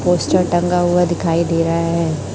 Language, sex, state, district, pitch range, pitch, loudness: Hindi, male, Chhattisgarh, Raipur, 165-175 Hz, 170 Hz, -16 LUFS